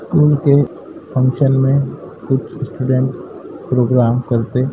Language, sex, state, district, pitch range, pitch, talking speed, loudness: Hindi, male, Uttar Pradesh, Hamirpur, 125-140 Hz, 130 Hz, 115 wpm, -16 LUFS